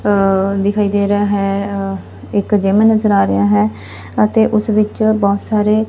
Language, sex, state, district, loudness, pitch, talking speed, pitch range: Punjabi, female, Punjab, Fazilka, -14 LUFS, 205 Hz, 185 wpm, 195-215 Hz